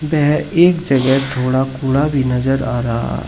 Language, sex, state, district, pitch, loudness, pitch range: Hindi, male, Uttar Pradesh, Shamli, 135 Hz, -16 LUFS, 125-150 Hz